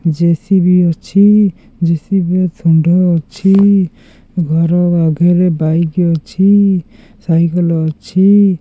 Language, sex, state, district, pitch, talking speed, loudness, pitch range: Odia, male, Odisha, Khordha, 175 Hz, 85 wpm, -12 LUFS, 165-190 Hz